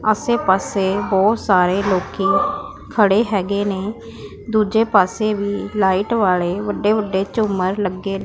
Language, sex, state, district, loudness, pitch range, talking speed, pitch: Punjabi, female, Punjab, Pathankot, -18 LUFS, 190-215 Hz, 125 wpm, 200 Hz